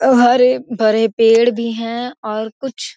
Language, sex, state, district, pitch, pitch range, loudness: Hindi, female, Bihar, Gopalganj, 230 Hz, 225-245 Hz, -15 LUFS